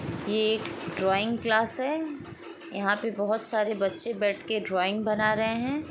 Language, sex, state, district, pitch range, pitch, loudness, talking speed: Hindi, female, Chhattisgarh, Sukma, 200-230 Hz, 215 Hz, -28 LUFS, 160 wpm